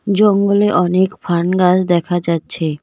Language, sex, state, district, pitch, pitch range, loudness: Bengali, female, West Bengal, Cooch Behar, 180 Hz, 170-200 Hz, -15 LUFS